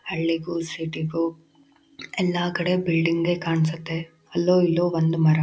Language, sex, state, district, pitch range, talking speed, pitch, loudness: Kannada, female, Karnataka, Shimoga, 165-175 Hz, 110 wpm, 165 Hz, -24 LUFS